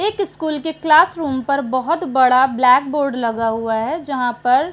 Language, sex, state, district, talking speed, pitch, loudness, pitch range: Hindi, female, Uttarakhand, Uttarkashi, 180 wpm, 275 Hz, -17 LUFS, 250-320 Hz